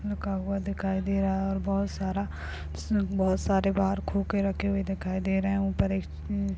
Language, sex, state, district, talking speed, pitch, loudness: Hindi, female, Uttarakhand, Tehri Garhwal, 210 wpm, 190 Hz, -29 LUFS